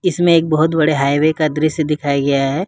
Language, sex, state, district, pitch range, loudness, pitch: Hindi, male, Jharkhand, Ranchi, 145-160 Hz, -15 LUFS, 155 Hz